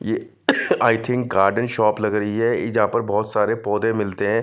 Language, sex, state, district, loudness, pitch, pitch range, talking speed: Hindi, male, Punjab, Fazilka, -20 LUFS, 110 Hz, 105-115 Hz, 205 wpm